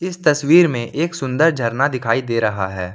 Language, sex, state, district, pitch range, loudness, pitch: Hindi, male, Jharkhand, Ranchi, 115-160 Hz, -17 LUFS, 130 Hz